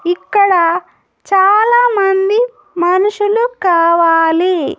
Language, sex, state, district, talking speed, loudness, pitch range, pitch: Telugu, female, Andhra Pradesh, Annamaya, 65 wpm, -12 LUFS, 345-415 Hz, 385 Hz